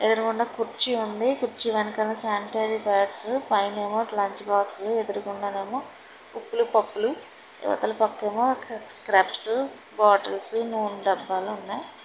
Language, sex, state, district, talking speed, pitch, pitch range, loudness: Telugu, female, Telangana, Hyderabad, 90 wpm, 220 Hz, 205-235 Hz, -23 LUFS